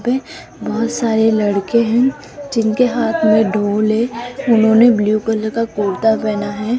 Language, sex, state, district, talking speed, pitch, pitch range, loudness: Hindi, female, Rajasthan, Jaipur, 150 wpm, 225 Hz, 215-235 Hz, -15 LUFS